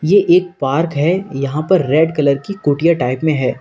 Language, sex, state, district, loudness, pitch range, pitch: Hindi, male, Uttar Pradesh, Lalitpur, -15 LUFS, 140-175 Hz, 155 Hz